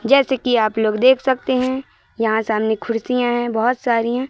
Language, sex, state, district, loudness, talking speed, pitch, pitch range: Hindi, female, Madhya Pradesh, Katni, -18 LUFS, 210 wpm, 240 Hz, 225-260 Hz